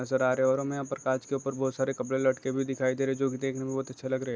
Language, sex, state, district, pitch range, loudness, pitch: Hindi, male, Chhattisgarh, Bastar, 130-135 Hz, -30 LUFS, 130 Hz